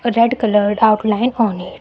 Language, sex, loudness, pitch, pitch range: English, female, -15 LUFS, 220 Hz, 210-230 Hz